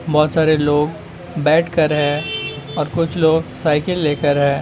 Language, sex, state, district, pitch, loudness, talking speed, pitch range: Hindi, male, Bihar, Begusarai, 150 Hz, -17 LUFS, 170 wpm, 145-160 Hz